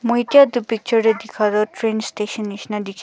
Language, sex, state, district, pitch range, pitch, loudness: Nagamese, female, Nagaland, Kohima, 210-240 Hz, 220 Hz, -18 LUFS